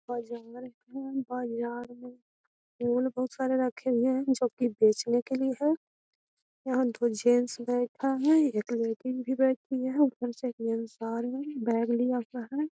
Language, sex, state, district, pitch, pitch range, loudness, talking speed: Magahi, female, Bihar, Gaya, 250 Hz, 240-260 Hz, -29 LUFS, 180 wpm